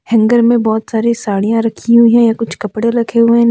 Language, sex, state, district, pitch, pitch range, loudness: Hindi, female, Jharkhand, Deoghar, 230 Hz, 220-235 Hz, -12 LUFS